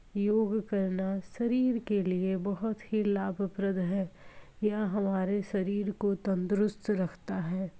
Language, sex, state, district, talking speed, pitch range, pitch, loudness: Hindi, female, Uttar Pradesh, Varanasi, 125 wpm, 190-210 Hz, 200 Hz, -31 LUFS